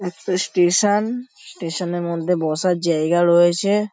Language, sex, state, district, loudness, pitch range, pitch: Bengali, male, West Bengal, Paschim Medinipur, -19 LUFS, 170-200 Hz, 175 Hz